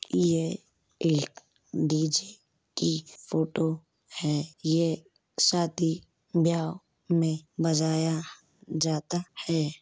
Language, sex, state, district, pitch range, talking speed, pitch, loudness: Hindi, male, Uttar Pradesh, Hamirpur, 160-170 Hz, 85 wpm, 160 Hz, -28 LUFS